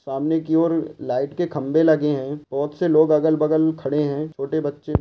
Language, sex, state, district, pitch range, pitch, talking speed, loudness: Hindi, male, Chhattisgarh, Korba, 140-160 Hz, 150 Hz, 230 wpm, -21 LUFS